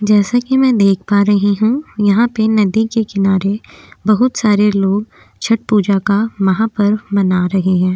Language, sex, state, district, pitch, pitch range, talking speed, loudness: Hindi, female, Uttarakhand, Tehri Garhwal, 210 Hz, 200-220 Hz, 165 wpm, -14 LUFS